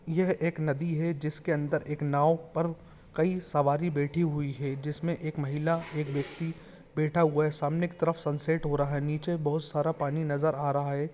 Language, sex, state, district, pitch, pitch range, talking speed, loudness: Hindi, male, Jharkhand, Jamtara, 155 Hz, 145-165 Hz, 190 wpm, -30 LUFS